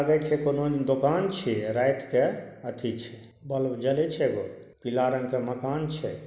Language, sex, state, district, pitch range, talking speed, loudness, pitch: Maithili, male, Bihar, Saharsa, 125-155 Hz, 170 wpm, -27 LUFS, 135 Hz